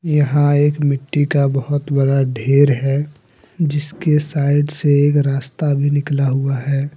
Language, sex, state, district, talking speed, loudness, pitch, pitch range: Hindi, male, Jharkhand, Deoghar, 145 wpm, -17 LUFS, 145 Hz, 135-145 Hz